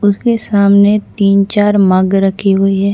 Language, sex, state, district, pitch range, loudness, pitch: Hindi, female, Chhattisgarh, Bastar, 195-205 Hz, -11 LUFS, 200 Hz